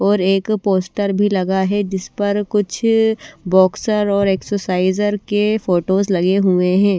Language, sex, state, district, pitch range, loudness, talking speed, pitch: Hindi, female, Bihar, West Champaran, 190-205 Hz, -17 LUFS, 145 wpm, 200 Hz